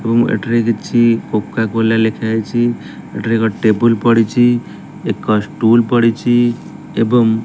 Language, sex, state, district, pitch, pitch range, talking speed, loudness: Odia, male, Odisha, Malkangiri, 115 Hz, 110-120 Hz, 120 wpm, -15 LUFS